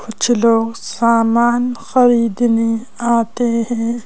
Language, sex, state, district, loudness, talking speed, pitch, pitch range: Hindi, female, Madhya Pradesh, Bhopal, -15 LUFS, 90 wpm, 235 Hz, 230-240 Hz